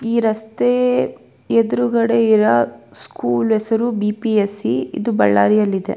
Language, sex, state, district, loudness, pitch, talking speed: Kannada, female, Karnataka, Bellary, -17 LUFS, 215 Hz, 100 wpm